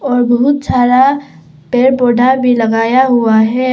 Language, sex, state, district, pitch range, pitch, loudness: Hindi, female, Arunachal Pradesh, Papum Pare, 230-260 Hz, 245 Hz, -11 LUFS